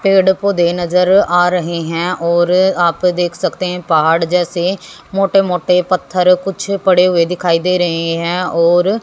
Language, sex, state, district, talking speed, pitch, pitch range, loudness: Hindi, female, Haryana, Jhajjar, 160 wpm, 180 Hz, 170-185 Hz, -14 LUFS